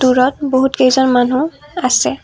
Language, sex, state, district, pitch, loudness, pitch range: Assamese, female, Assam, Kamrup Metropolitan, 260 Hz, -14 LUFS, 255-280 Hz